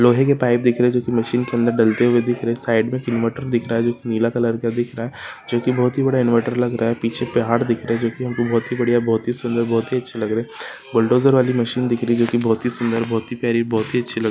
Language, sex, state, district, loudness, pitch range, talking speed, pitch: Hindi, female, Jharkhand, Sahebganj, -19 LUFS, 115-125 Hz, 305 wpm, 120 Hz